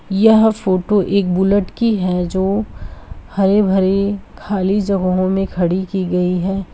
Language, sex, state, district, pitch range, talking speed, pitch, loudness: Hindi, female, Bihar, Purnia, 185-200 Hz, 150 wpm, 195 Hz, -16 LUFS